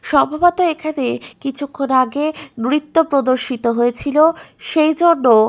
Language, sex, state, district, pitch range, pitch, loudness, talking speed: Bengali, female, West Bengal, Malda, 255-315 Hz, 285 Hz, -17 LUFS, 100 wpm